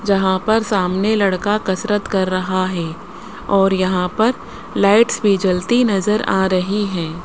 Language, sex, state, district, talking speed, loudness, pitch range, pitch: Hindi, female, Rajasthan, Jaipur, 150 wpm, -17 LUFS, 185-210 Hz, 195 Hz